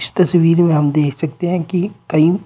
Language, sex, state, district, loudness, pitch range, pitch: Hindi, male, Uttar Pradesh, Shamli, -15 LUFS, 155-180 Hz, 170 Hz